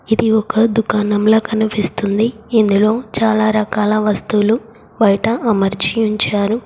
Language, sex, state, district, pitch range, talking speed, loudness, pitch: Telugu, female, Telangana, Komaram Bheem, 210-225 Hz, 100 wpm, -15 LUFS, 215 Hz